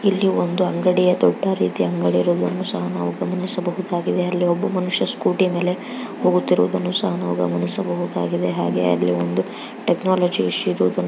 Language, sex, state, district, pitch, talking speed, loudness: Kannada, female, Karnataka, Raichur, 175 Hz, 125 wpm, -19 LUFS